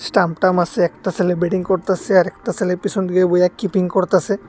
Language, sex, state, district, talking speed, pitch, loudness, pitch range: Bengali, male, Tripura, West Tripura, 185 wpm, 185 Hz, -18 LUFS, 180-195 Hz